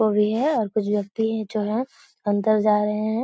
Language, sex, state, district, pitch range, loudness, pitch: Hindi, female, Bihar, Supaul, 210-225 Hz, -23 LUFS, 215 Hz